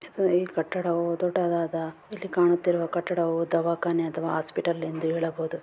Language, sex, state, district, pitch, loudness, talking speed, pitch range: Kannada, female, Karnataka, Bijapur, 170 Hz, -27 LUFS, 115 wpm, 165-180 Hz